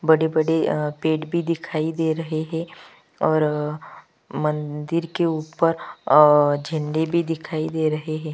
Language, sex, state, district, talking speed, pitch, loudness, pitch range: Hindi, female, Chhattisgarh, Kabirdham, 150 wpm, 155 Hz, -22 LUFS, 150-165 Hz